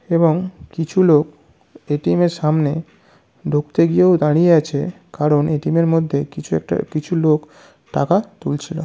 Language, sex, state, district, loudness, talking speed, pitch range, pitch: Bengali, male, West Bengal, North 24 Parganas, -18 LUFS, 135 wpm, 150-170 Hz, 160 Hz